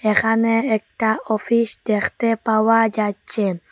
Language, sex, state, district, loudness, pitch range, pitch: Bengali, female, Assam, Hailakandi, -19 LUFS, 215-225 Hz, 220 Hz